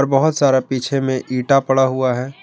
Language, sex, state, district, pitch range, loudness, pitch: Hindi, male, Jharkhand, Garhwa, 130-135 Hz, -17 LUFS, 135 Hz